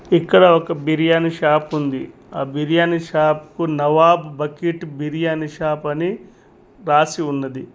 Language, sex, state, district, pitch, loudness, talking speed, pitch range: Telugu, male, Telangana, Mahabubabad, 155 Hz, -18 LUFS, 125 wpm, 150-170 Hz